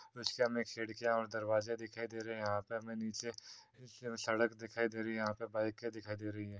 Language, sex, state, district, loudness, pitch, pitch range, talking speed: Hindi, male, Uttar Pradesh, Varanasi, -39 LUFS, 115 Hz, 110-115 Hz, 235 wpm